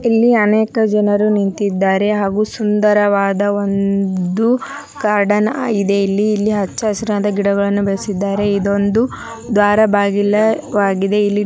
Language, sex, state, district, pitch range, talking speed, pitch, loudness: Kannada, male, Karnataka, Dharwad, 200-215 Hz, 110 wpm, 205 Hz, -15 LUFS